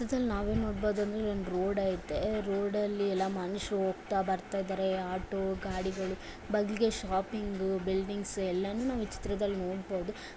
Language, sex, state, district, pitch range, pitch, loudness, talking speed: Kannada, female, Karnataka, Bellary, 190-210 Hz, 195 Hz, -33 LUFS, 135 wpm